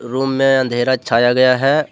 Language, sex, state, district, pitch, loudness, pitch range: Hindi, male, Jharkhand, Deoghar, 130 Hz, -15 LUFS, 120-135 Hz